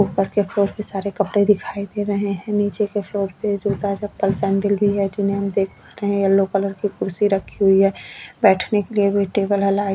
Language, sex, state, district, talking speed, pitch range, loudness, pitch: Hindi, female, Chhattisgarh, Bastar, 235 wpm, 195-205 Hz, -20 LUFS, 200 Hz